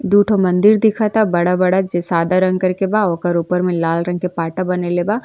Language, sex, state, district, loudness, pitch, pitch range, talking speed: Bhojpuri, female, Uttar Pradesh, Ghazipur, -16 LUFS, 180 Hz, 175-200 Hz, 205 wpm